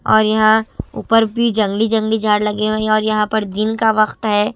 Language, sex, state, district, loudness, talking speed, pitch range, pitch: Hindi, female, Himachal Pradesh, Shimla, -16 LUFS, 195 wpm, 215-220 Hz, 215 Hz